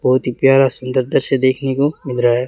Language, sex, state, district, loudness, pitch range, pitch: Hindi, male, Rajasthan, Bikaner, -16 LUFS, 125-135 Hz, 130 Hz